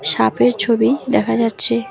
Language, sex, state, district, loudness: Bengali, female, West Bengal, Alipurduar, -16 LUFS